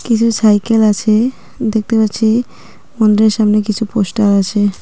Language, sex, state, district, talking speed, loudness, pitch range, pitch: Bengali, female, West Bengal, Cooch Behar, 125 wpm, -13 LUFS, 210-225 Hz, 220 Hz